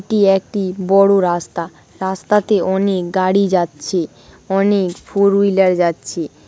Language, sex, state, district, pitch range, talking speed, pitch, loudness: Bengali, female, West Bengal, Dakshin Dinajpur, 175-200 Hz, 110 wpm, 190 Hz, -16 LUFS